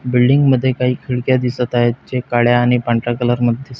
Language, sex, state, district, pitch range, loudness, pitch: Marathi, male, Maharashtra, Pune, 120-125 Hz, -16 LUFS, 125 Hz